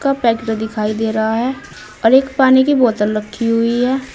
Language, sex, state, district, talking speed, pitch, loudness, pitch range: Hindi, female, Uttar Pradesh, Saharanpur, 190 wpm, 230 Hz, -15 LUFS, 220-260 Hz